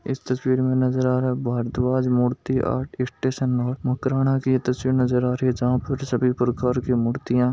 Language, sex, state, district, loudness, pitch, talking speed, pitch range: Hindi, male, Rajasthan, Nagaur, -23 LUFS, 125 Hz, 205 wpm, 125-130 Hz